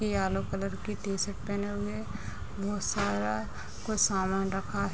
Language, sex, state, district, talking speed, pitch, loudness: Hindi, female, Uttar Pradesh, Gorakhpur, 135 wpm, 195 Hz, -32 LUFS